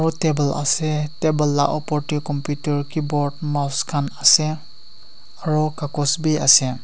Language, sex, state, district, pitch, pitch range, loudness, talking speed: Nagamese, male, Nagaland, Kohima, 150 Hz, 145-155 Hz, -20 LUFS, 130 wpm